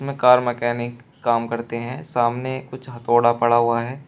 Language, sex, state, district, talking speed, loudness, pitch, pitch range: Hindi, male, Uttar Pradesh, Shamli, 160 wpm, -20 LUFS, 120 Hz, 120-130 Hz